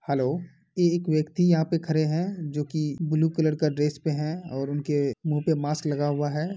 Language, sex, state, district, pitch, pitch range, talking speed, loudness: Hindi, male, Bihar, Kishanganj, 155 Hz, 150-165 Hz, 235 wpm, -26 LUFS